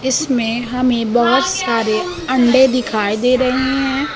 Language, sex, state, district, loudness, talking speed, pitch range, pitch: Hindi, female, Bihar, West Champaran, -15 LUFS, 130 wpm, 235-265 Hz, 255 Hz